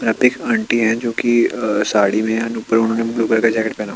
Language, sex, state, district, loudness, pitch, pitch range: Hindi, male, Chandigarh, Chandigarh, -17 LUFS, 115 Hz, 110-115 Hz